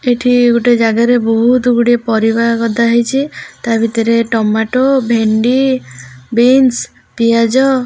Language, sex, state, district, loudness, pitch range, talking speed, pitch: Odia, female, Odisha, Khordha, -12 LUFS, 225-245 Hz, 115 wpm, 235 Hz